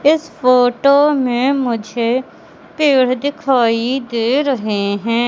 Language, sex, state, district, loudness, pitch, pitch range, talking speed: Hindi, male, Madhya Pradesh, Katni, -15 LUFS, 255 Hz, 235-280 Hz, 100 wpm